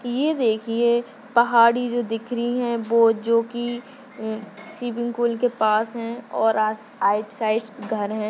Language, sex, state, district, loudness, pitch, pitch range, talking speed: Hindi, female, Maharashtra, Sindhudurg, -22 LUFS, 230 Hz, 220-240 Hz, 150 wpm